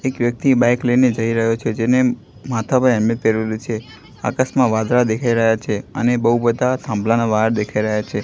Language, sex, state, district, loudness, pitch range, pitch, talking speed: Gujarati, male, Gujarat, Gandhinagar, -18 LUFS, 110-125 Hz, 115 Hz, 190 wpm